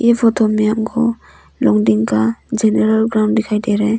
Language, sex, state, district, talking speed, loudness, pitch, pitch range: Hindi, female, Arunachal Pradesh, Longding, 180 wpm, -15 LUFS, 220 Hz, 210-225 Hz